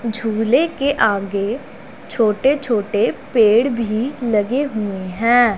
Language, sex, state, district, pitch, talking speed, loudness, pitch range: Hindi, female, Punjab, Pathankot, 230 Hz, 105 wpm, -18 LUFS, 215-265 Hz